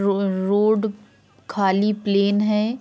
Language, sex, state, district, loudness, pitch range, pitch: Hindi, female, Uttar Pradesh, Hamirpur, -20 LUFS, 200-210 Hz, 205 Hz